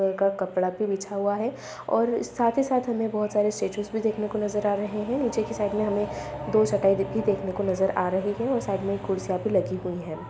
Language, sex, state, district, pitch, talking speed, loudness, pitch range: Hindi, female, Bihar, Madhepura, 205 Hz, 250 wpm, -26 LUFS, 195-215 Hz